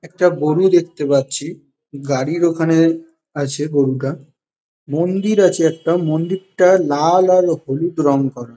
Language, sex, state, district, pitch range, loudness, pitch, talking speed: Bengali, male, West Bengal, Jalpaiguri, 140-175 Hz, -16 LUFS, 160 Hz, 120 wpm